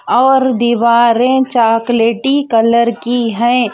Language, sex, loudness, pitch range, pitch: Hindi, female, -12 LUFS, 230-250 Hz, 235 Hz